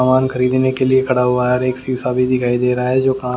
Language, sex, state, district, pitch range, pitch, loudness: Hindi, male, Haryana, Jhajjar, 125-130 Hz, 125 Hz, -16 LUFS